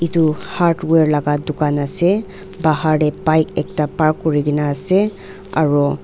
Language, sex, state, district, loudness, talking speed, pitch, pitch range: Nagamese, female, Nagaland, Dimapur, -16 LUFS, 130 wpm, 155 Hz, 150-170 Hz